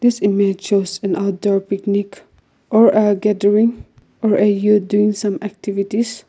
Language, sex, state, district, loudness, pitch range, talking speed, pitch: English, female, Nagaland, Kohima, -17 LUFS, 200-210 Hz, 145 wpm, 205 Hz